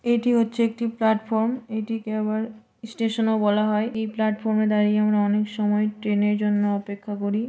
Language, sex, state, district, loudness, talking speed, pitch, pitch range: Bengali, female, West Bengal, Malda, -23 LUFS, 175 wpm, 215 Hz, 210-225 Hz